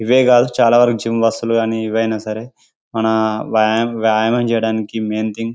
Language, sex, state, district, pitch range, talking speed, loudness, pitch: Telugu, male, Telangana, Karimnagar, 110-115 Hz, 175 wpm, -16 LUFS, 115 Hz